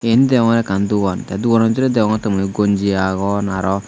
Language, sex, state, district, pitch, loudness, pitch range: Chakma, male, Tripura, Dhalai, 100 Hz, -16 LUFS, 95-115 Hz